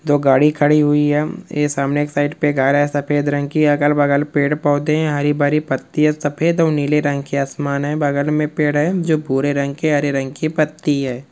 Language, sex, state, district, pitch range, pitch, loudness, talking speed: Hindi, male, Rajasthan, Churu, 145-150 Hz, 145 Hz, -17 LUFS, 235 wpm